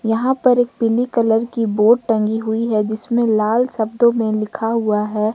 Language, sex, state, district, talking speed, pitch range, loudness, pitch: Hindi, female, Jharkhand, Ranchi, 190 wpm, 215-235 Hz, -17 LUFS, 225 Hz